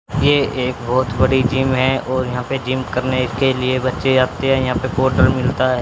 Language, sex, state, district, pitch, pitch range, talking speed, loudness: Hindi, male, Haryana, Rohtak, 130 Hz, 125-130 Hz, 215 wpm, -17 LUFS